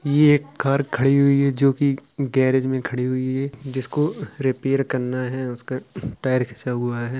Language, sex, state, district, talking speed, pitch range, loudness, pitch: Hindi, male, Uttar Pradesh, Jalaun, 185 wpm, 130-140 Hz, -22 LUFS, 135 Hz